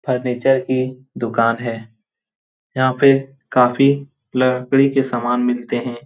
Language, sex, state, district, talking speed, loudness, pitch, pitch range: Hindi, male, Jharkhand, Jamtara, 120 wpm, -18 LUFS, 130 Hz, 120-135 Hz